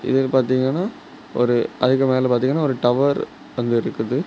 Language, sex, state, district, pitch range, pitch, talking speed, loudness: Tamil, male, Tamil Nadu, Kanyakumari, 120-140 Hz, 130 Hz, 140 wpm, -20 LUFS